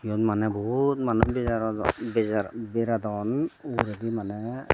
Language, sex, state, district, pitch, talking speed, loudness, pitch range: Chakma, female, Tripura, Dhalai, 115 Hz, 90 wpm, -27 LUFS, 110-120 Hz